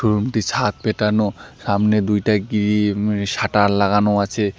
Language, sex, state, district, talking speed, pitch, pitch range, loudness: Bengali, male, West Bengal, Alipurduar, 145 wpm, 105 Hz, 100-105 Hz, -19 LUFS